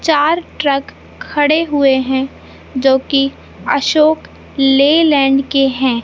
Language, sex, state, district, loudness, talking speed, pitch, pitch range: Hindi, male, Madhya Pradesh, Katni, -14 LUFS, 120 wpm, 275 Hz, 270-300 Hz